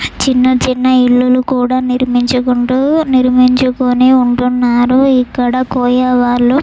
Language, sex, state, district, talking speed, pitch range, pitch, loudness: Telugu, female, Andhra Pradesh, Chittoor, 80 wpm, 250-255 Hz, 250 Hz, -11 LUFS